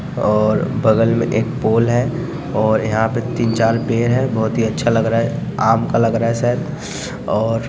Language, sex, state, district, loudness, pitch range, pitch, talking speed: Hindi, male, Bihar, Sitamarhi, -17 LUFS, 110-120 Hz, 115 Hz, 205 wpm